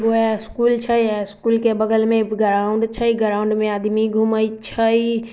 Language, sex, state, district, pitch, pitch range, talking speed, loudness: Maithili, female, Bihar, Samastipur, 220 Hz, 215-230 Hz, 170 wpm, -19 LUFS